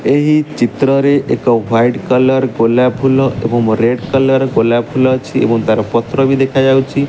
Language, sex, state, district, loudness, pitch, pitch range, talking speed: Odia, male, Odisha, Malkangiri, -13 LUFS, 130 Hz, 115-135 Hz, 175 wpm